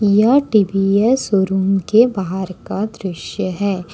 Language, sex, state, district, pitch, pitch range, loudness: Hindi, female, Jharkhand, Ranchi, 195 Hz, 190-215 Hz, -17 LUFS